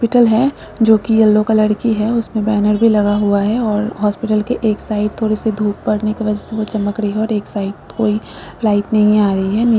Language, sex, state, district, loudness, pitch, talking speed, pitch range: Hindi, female, West Bengal, Purulia, -16 LUFS, 215 Hz, 235 wpm, 210-220 Hz